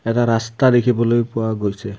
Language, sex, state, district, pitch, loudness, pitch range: Assamese, male, Assam, Kamrup Metropolitan, 115 Hz, -18 LUFS, 110-120 Hz